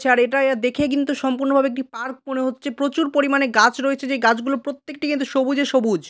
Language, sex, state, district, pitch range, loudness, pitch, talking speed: Bengali, female, West Bengal, Purulia, 260-280 Hz, -20 LUFS, 275 Hz, 205 wpm